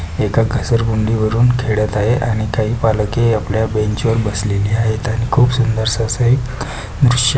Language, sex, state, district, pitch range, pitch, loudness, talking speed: Marathi, male, Maharashtra, Pune, 110-120 Hz, 110 Hz, -16 LUFS, 170 wpm